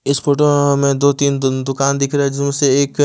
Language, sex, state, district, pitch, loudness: Hindi, male, Odisha, Malkangiri, 140 Hz, -15 LUFS